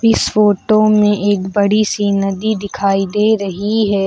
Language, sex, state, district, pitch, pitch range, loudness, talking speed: Hindi, female, Uttar Pradesh, Lucknow, 205 Hz, 200-215 Hz, -14 LUFS, 160 wpm